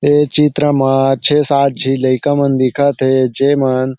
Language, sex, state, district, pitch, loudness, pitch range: Chhattisgarhi, male, Chhattisgarh, Sarguja, 135 Hz, -13 LUFS, 130-145 Hz